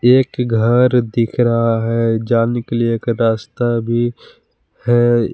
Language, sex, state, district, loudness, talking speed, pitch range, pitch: Hindi, male, Jharkhand, Palamu, -16 LUFS, 135 wpm, 115-120 Hz, 115 Hz